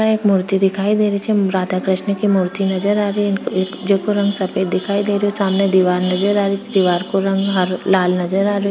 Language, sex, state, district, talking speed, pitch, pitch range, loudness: Rajasthani, female, Rajasthan, Churu, 225 wpm, 195 Hz, 185-205 Hz, -17 LUFS